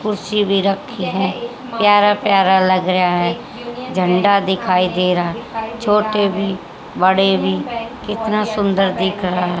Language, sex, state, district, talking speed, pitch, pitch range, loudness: Hindi, female, Haryana, Charkhi Dadri, 130 wpm, 195 Hz, 185-215 Hz, -16 LUFS